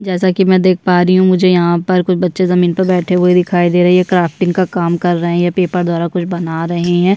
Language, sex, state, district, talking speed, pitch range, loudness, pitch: Hindi, female, Chhattisgarh, Bastar, 285 wpm, 175-185 Hz, -13 LUFS, 180 Hz